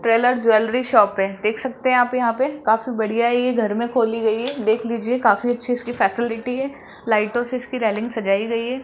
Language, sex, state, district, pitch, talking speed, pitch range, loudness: Hindi, male, Rajasthan, Jaipur, 235 Hz, 225 wpm, 220-250 Hz, -20 LUFS